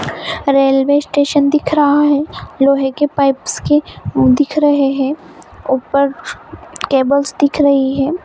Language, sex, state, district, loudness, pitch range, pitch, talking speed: Hindi, female, Bihar, Saran, -14 LUFS, 275-295 Hz, 280 Hz, 125 wpm